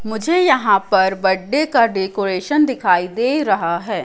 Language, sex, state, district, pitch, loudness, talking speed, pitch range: Hindi, female, Madhya Pradesh, Katni, 205 Hz, -17 LUFS, 150 wpm, 190-265 Hz